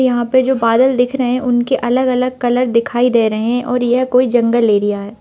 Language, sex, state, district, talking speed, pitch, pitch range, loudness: Hindi, female, Bihar, Bhagalpur, 230 wpm, 245 Hz, 235-255 Hz, -14 LUFS